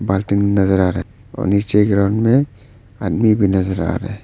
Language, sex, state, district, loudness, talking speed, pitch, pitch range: Hindi, male, Arunachal Pradesh, Papum Pare, -17 LUFS, 210 wpm, 100 Hz, 95-110 Hz